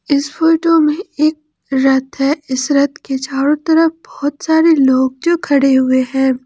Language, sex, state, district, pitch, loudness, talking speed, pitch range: Hindi, female, Jharkhand, Ranchi, 285 Hz, -14 LUFS, 165 wpm, 270-320 Hz